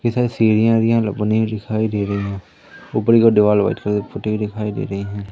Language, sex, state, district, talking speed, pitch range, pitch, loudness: Hindi, male, Madhya Pradesh, Umaria, 270 wpm, 105-115 Hz, 105 Hz, -18 LUFS